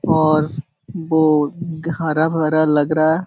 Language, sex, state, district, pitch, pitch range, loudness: Hindi, male, Bihar, Jahanabad, 155 Hz, 155-165 Hz, -17 LUFS